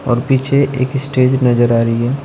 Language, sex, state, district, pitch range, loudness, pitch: Hindi, male, Uttar Pradesh, Shamli, 120-135 Hz, -14 LUFS, 130 Hz